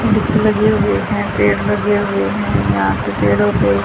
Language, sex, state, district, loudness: Hindi, female, Haryana, Charkhi Dadri, -15 LUFS